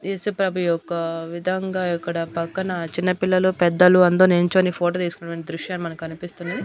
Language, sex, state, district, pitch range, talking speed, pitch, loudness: Telugu, female, Andhra Pradesh, Annamaya, 170-185 Hz, 135 wpm, 175 Hz, -21 LUFS